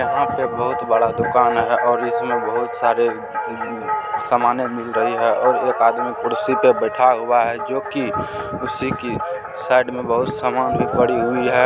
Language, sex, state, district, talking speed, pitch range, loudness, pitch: Hindi, male, Bihar, Supaul, 170 wpm, 120-125 Hz, -19 LUFS, 120 Hz